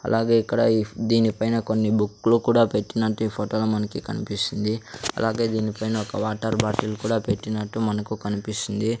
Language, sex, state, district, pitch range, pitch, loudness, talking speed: Telugu, male, Andhra Pradesh, Sri Satya Sai, 105-115 Hz, 110 Hz, -24 LUFS, 145 wpm